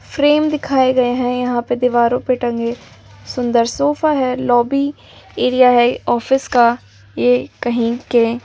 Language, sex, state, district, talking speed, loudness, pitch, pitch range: Hindi, female, Delhi, New Delhi, 140 wpm, -16 LUFS, 245 Hz, 240-260 Hz